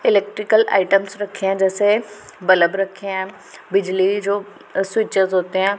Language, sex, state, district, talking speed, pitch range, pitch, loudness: Hindi, female, Punjab, Pathankot, 135 wpm, 190-205 Hz, 195 Hz, -19 LUFS